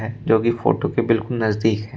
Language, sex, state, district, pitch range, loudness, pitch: Hindi, male, Uttar Pradesh, Shamli, 110-120 Hz, -20 LUFS, 115 Hz